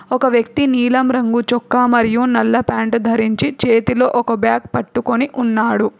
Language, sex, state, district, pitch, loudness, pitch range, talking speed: Telugu, female, Telangana, Hyderabad, 235 Hz, -15 LUFS, 230-250 Hz, 140 wpm